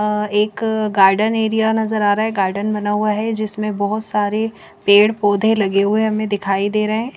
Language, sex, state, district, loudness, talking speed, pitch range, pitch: Hindi, female, Chandigarh, Chandigarh, -17 LUFS, 200 wpm, 205-220 Hz, 210 Hz